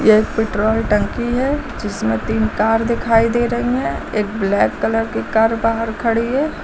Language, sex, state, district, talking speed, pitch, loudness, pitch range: Hindi, female, Uttar Pradesh, Lucknow, 180 wpm, 225 Hz, -18 LUFS, 215-235 Hz